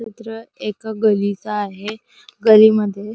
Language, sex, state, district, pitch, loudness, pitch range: Marathi, female, Maharashtra, Sindhudurg, 215 Hz, -16 LUFS, 205-220 Hz